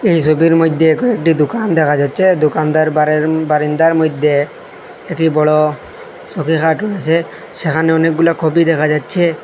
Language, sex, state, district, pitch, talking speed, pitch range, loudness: Bengali, male, Assam, Hailakandi, 160 Hz, 135 wpm, 155-165 Hz, -13 LUFS